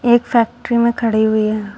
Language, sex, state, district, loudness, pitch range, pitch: Hindi, female, Uttar Pradesh, Shamli, -16 LUFS, 215-240 Hz, 235 Hz